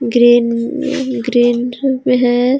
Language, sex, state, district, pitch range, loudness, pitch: Hindi, female, Jharkhand, Ranchi, 240-260 Hz, -14 LUFS, 245 Hz